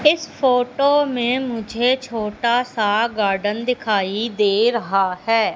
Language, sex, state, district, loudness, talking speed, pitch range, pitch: Hindi, female, Madhya Pradesh, Katni, -19 LUFS, 120 wpm, 210-250 Hz, 230 Hz